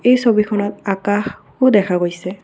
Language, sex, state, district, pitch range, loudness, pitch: Assamese, female, Assam, Kamrup Metropolitan, 190-220 Hz, -17 LUFS, 205 Hz